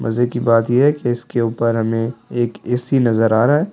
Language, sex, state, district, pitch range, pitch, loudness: Hindi, male, Delhi, New Delhi, 115-125 Hz, 120 Hz, -17 LUFS